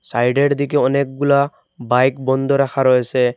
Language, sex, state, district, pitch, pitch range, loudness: Bengali, male, Assam, Hailakandi, 135 Hz, 125-140 Hz, -17 LUFS